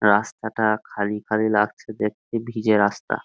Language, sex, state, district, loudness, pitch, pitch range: Bengali, male, West Bengal, Jhargram, -23 LUFS, 110 Hz, 105-110 Hz